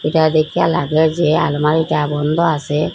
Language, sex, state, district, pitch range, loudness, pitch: Bengali, female, Assam, Hailakandi, 150-160 Hz, -16 LUFS, 155 Hz